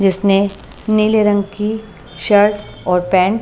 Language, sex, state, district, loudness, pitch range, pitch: Hindi, female, Punjab, Pathankot, -15 LUFS, 190-215 Hz, 205 Hz